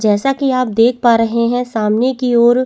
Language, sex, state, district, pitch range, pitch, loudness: Hindi, female, Chhattisgarh, Bastar, 230-255 Hz, 240 Hz, -14 LUFS